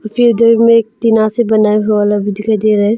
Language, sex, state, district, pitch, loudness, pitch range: Hindi, female, Arunachal Pradesh, Longding, 220 Hz, -11 LUFS, 210-230 Hz